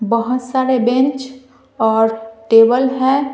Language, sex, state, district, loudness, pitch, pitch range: Hindi, female, Bihar, Patna, -15 LUFS, 250 Hz, 225-260 Hz